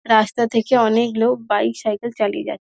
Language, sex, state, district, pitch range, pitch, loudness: Bengali, female, West Bengal, Dakshin Dinajpur, 215-235 Hz, 230 Hz, -19 LUFS